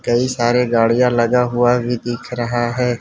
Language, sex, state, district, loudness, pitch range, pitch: Hindi, male, Arunachal Pradesh, Lower Dibang Valley, -17 LUFS, 120-125 Hz, 120 Hz